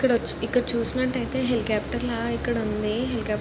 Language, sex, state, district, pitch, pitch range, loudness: Telugu, female, Andhra Pradesh, Guntur, 235 Hz, 220-250 Hz, -25 LUFS